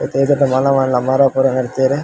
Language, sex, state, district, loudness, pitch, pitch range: Tulu, male, Karnataka, Dakshina Kannada, -15 LUFS, 135 Hz, 130-135 Hz